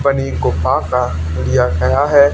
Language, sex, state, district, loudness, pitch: Hindi, male, Haryana, Charkhi Dadri, -15 LUFS, 125 Hz